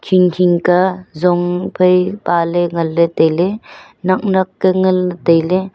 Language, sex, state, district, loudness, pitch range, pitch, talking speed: Wancho, female, Arunachal Pradesh, Longding, -15 LUFS, 175-185 Hz, 180 Hz, 135 wpm